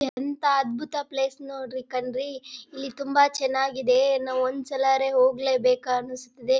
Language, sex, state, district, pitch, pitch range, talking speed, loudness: Kannada, female, Karnataka, Bijapur, 265 Hz, 255-275 Hz, 120 wpm, -25 LUFS